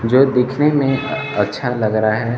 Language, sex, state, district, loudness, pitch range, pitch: Hindi, male, Bihar, Kaimur, -17 LUFS, 110-135 Hz, 125 Hz